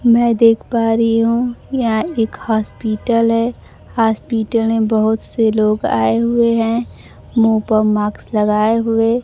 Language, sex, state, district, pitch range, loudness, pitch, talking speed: Hindi, female, Bihar, Kaimur, 220-230 Hz, -16 LUFS, 225 Hz, 145 wpm